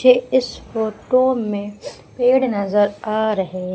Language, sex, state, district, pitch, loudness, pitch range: Hindi, female, Madhya Pradesh, Umaria, 220 Hz, -19 LUFS, 205-255 Hz